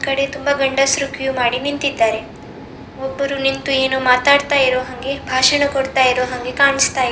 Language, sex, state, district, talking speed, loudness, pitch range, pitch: Kannada, female, Karnataka, Dakshina Kannada, 150 wpm, -16 LUFS, 255-275 Hz, 270 Hz